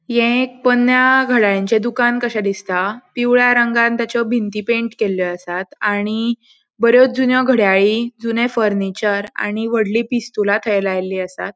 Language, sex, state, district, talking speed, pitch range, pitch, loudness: Konkani, female, Goa, North and South Goa, 135 wpm, 205-240 Hz, 230 Hz, -16 LUFS